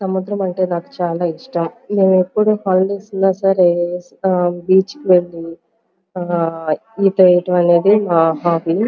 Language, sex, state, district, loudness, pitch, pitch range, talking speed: Telugu, female, Andhra Pradesh, Guntur, -16 LUFS, 180 Hz, 175-195 Hz, 130 wpm